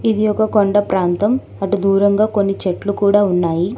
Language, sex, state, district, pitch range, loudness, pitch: Telugu, female, Telangana, Hyderabad, 195-210 Hz, -16 LUFS, 200 Hz